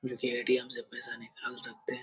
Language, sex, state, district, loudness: Hindi, male, Bihar, Jamui, -34 LUFS